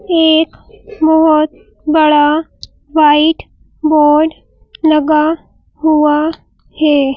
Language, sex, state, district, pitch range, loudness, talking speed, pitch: Hindi, female, Madhya Pradesh, Bhopal, 300-320 Hz, -12 LUFS, 65 wpm, 310 Hz